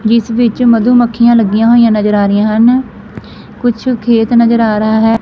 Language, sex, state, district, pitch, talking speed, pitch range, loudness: Punjabi, female, Punjab, Fazilka, 230 Hz, 185 wpm, 220-235 Hz, -10 LUFS